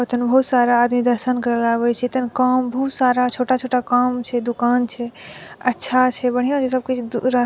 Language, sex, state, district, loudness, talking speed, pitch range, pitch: Maithili, female, Bihar, Madhepura, -19 LUFS, 200 wpm, 240-255 Hz, 245 Hz